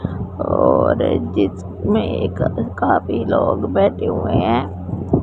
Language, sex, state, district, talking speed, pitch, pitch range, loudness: Hindi, female, Punjab, Pathankot, 90 wpm, 95 Hz, 95-105 Hz, -18 LUFS